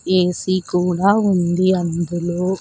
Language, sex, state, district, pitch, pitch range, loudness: Telugu, female, Andhra Pradesh, Sri Satya Sai, 180 Hz, 175-185 Hz, -18 LUFS